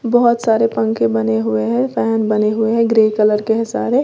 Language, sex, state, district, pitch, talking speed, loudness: Hindi, female, Uttar Pradesh, Lalitpur, 220 Hz, 225 wpm, -15 LUFS